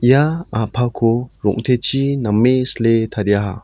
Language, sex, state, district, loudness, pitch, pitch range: Garo, male, Meghalaya, South Garo Hills, -17 LUFS, 120 Hz, 110-130 Hz